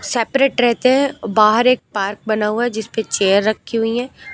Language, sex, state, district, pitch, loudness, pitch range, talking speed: Hindi, female, Uttar Pradesh, Lucknow, 225 Hz, -17 LUFS, 215-245 Hz, 205 wpm